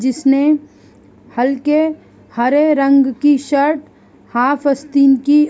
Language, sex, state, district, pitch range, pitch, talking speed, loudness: Hindi, female, Bihar, East Champaran, 270-295 Hz, 280 Hz, 110 wpm, -14 LUFS